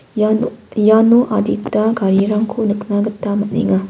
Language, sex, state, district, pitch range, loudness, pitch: Garo, female, Meghalaya, West Garo Hills, 205-220 Hz, -15 LUFS, 215 Hz